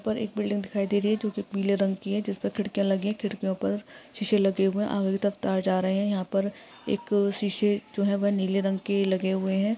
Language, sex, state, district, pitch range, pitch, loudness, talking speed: Hindi, female, Andhra Pradesh, Visakhapatnam, 195-210 Hz, 200 Hz, -27 LUFS, 240 wpm